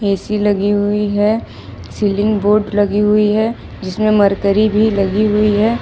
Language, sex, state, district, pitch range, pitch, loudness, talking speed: Hindi, female, Jharkhand, Ranchi, 205-215 Hz, 210 Hz, -15 LUFS, 155 wpm